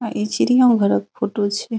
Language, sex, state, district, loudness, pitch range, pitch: Hindi, female, Bihar, Saharsa, -18 LUFS, 205-230 Hz, 215 Hz